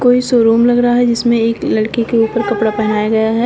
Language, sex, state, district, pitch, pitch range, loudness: Hindi, female, Uttar Pradesh, Shamli, 230 Hz, 220-240 Hz, -13 LUFS